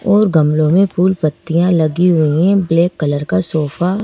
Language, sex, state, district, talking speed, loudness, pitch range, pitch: Hindi, female, Madhya Pradesh, Bhopal, 195 wpm, -14 LUFS, 155-180 Hz, 170 Hz